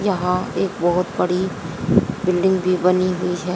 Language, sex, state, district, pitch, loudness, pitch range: Hindi, female, Haryana, Jhajjar, 185 Hz, -20 LUFS, 180-190 Hz